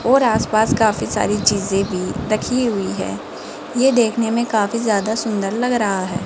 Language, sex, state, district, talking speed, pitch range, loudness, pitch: Hindi, female, Rajasthan, Jaipur, 180 wpm, 195-230 Hz, -18 LUFS, 215 Hz